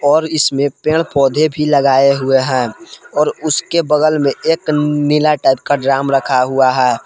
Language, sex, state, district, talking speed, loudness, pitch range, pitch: Hindi, male, Jharkhand, Palamu, 170 wpm, -14 LUFS, 135-155 Hz, 145 Hz